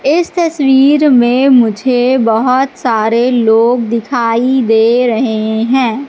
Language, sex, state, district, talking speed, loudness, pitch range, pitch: Hindi, female, Madhya Pradesh, Katni, 110 wpm, -11 LUFS, 230-265 Hz, 245 Hz